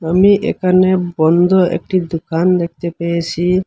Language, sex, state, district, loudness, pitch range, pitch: Bengali, male, Assam, Hailakandi, -14 LUFS, 170-185 Hz, 175 Hz